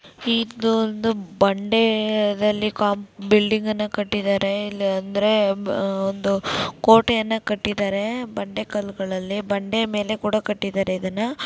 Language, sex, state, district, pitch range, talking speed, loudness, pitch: Kannada, female, Karnataka, Dakshina Kannada, 195-220 Hz, 105 wpm, -22 LUFS, 210 Hz